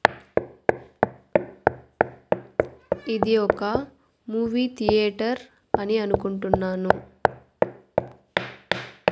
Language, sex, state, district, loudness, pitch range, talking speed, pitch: Telugu, female, Andhra Pradesh, Annamaya, -25 LUFS, 205-230 Hz, 40 wpm, 220 Hz